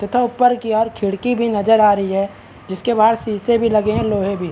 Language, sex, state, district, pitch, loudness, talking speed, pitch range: Hindi, male, Bihar, Araria, 215 Hz, -17 LUFS, 240 wpm, 200-235 Hz